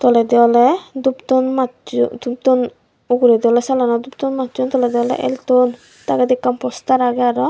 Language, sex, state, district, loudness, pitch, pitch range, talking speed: Chakma, female, Tripura, Dhalai, -16 LUFS, 250 Hz, 240-260 Hz, 175 wpm